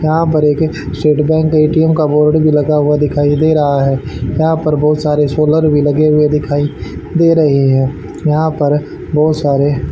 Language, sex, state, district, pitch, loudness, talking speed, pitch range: Hindi, male, Haryana, Rohtak, 150 Hz, -12 LUFS, 195 wpm, 145-155 Hz